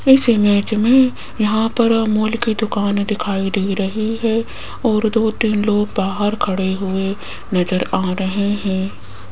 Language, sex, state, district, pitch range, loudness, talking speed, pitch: Hindi, female, Rajasthan, Jaipur, 195-220 Hz, -18 LUFS, 150 wpm, 210 Hz